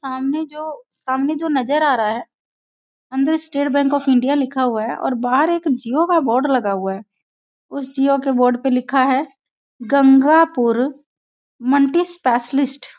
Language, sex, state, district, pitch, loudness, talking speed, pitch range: Hindi, female, Bihar, Sitamarhi, 270 Hz, -17 LUFS, 160 wpm, 255-290 Hz